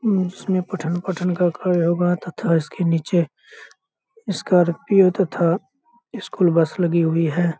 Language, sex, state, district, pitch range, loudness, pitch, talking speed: Hindi, male, Bihar, Saharsa, 170-190 Hz, -20 LUFS, 180 Hz, 125 wpm